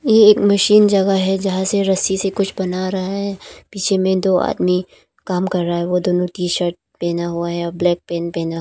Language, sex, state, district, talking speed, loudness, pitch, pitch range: Hindi, female, Arunachal Pradesh, Papum Pare, 215 wpm, -17 LUFS, 185 Hz, 175-195 Hz